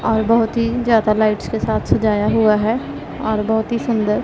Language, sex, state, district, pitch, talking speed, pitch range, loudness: Hindi, female, Punjab, Pathankot, 220 Hz, 200 wpm, 215-230 Hz, -17 LUFS